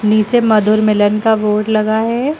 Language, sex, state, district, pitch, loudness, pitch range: Hindi, female, Uttar Pradesh, Lucknow, 215 Hz, -13 LUFS, 210-225 Hz